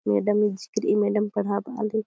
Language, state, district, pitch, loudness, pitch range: Kurukh, Chhattisgarh, Jashpur, 210 Hz, -25 LUFS, 200-215 Hz